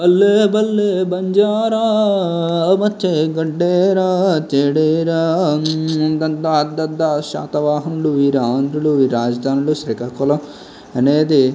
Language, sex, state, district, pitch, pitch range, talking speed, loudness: Telugu, male, Andhra Pradesh, Srikakulam, 160 Hz, 150-185 Hz, 75 wpm, -16 LUFS